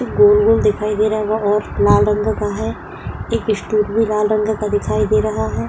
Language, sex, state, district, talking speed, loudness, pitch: Hindi, female, Uttar Pradesh, Budaun, 220 wpm, -16 LUFS, 210 Hz